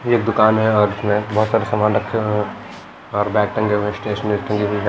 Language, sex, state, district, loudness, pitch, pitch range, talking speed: Hindi, male, Haryana, Jhajjar, -18 LUFS, 105 Hz, 105-110 Hz, 235 wpm